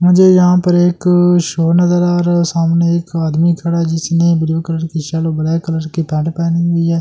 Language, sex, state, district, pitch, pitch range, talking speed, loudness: Hindi, male, Delhi, New Delhi, 170 Hz, 165-175 Hz, 250 wpm, -13 LUFS